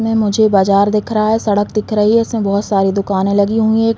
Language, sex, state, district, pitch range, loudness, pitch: Hindi, female, Uttar Pradesh, Deoria, 200-220 Hz, -14 LUFS, 210 Hz